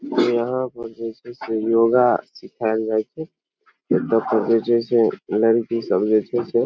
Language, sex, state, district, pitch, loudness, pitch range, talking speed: Maithili, male, Bihar, Samastipur, 115 Hz, -20 LUFS, 110-120 Hz, 125 wpm